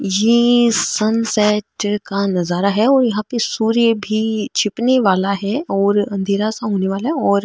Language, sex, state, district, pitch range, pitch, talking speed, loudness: Marwari, female, Rajasthan, Nagaur, 200-230 Hz, 210 Hz, 175 wpm, -17 LUFS